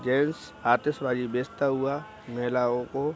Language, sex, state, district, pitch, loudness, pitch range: Hindi, male, Bihar, Araria, 125 Hz, -28 LUFS, 125-140 Hz